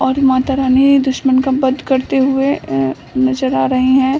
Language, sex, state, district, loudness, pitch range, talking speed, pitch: Hindi, female, Bihar, Samastipur, -14 LUFS, 255-270 Hz, 185 wpm, 265 Hz